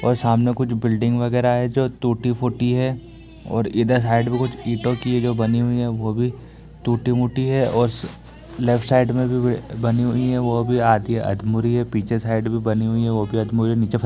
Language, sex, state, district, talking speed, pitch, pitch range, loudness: Hindi, male, Bihar, East Champaran, 235 wpm, 120 Hz, 115-125 Hz, -20 LUFS